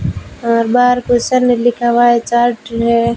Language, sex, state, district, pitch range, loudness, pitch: Hindi, female, Rajasthan, Bikaner, 235-245 Hz, -13 LUFS, 240 Hz